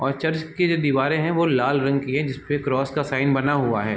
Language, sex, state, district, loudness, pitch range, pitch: Hindi, male, Chhattisgarh, Raigarh, -22 LUFS, 135-160 Hz, 140 Hz